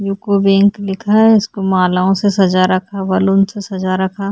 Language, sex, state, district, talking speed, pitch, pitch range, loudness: Hindi, female, Chhattisgarh, Korba, 165 wpm, 195 Hz, 190-200 Hz, -14 LUFS